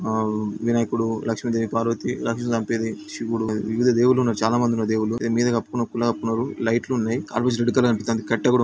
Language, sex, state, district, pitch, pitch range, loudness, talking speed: Telugu, male, Andhra Pradesh, Srikakulam, 115 Hz, 115-120 Hz, -23 LUFS, 165 wpm